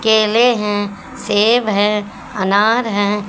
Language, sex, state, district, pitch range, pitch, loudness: Hindi, female, Haryana, Jhajjar, 205-225 Hz, 210 Hz, -15 LUFS